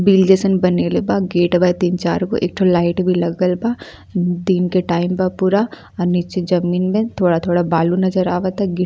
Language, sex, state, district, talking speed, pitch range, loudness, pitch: Bhojpuri, female, Uttar Pradesh, Ghazipur, 205 wpm, 175-185 Hz, -17 LUFS, 180 Hz